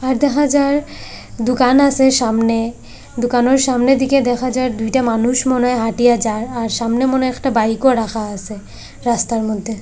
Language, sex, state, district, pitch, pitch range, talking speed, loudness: Bengali, female, Assam, Hailakandi, 245 Hz, 230-260 Hz, 165 wpm, -16 LUFS